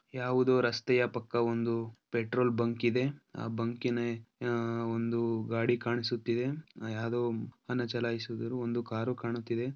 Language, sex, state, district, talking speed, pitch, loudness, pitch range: Kannada, male, Karnataka, Dharwad, 125 wpm, 120 Hz, -33 LUFS, 115-120 Hz